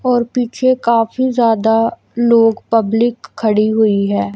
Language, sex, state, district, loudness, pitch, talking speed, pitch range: Hindi, female, Punjab, Kapurthala, -14 LUFS, 230 Hz, 125 wpm, 220-240 Hz